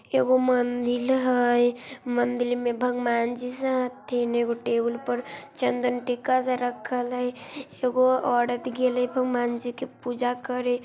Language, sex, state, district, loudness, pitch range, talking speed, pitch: Maithili, male, Bihar, Samastipur, -25 LUFS, 245-255 Hz, 140 wpm, 245 Hz